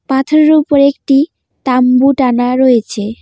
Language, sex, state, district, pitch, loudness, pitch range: Bengali, female, West Bengal, Cooch Behar, 265 Hz, -11 LUFS, 250-280 Hz